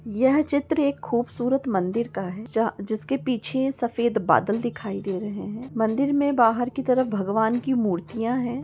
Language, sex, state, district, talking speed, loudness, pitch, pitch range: Hindi, female, Maharashtra, Chandrapur, 180 wpm, -24 LUFS, 235 Hz, 215-260 Hz